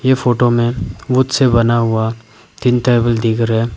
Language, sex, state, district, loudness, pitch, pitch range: Hindi, male, Arunachal Pradesh, Papum Pare, -15 LUFS, 120 Hz, 115-125 Hz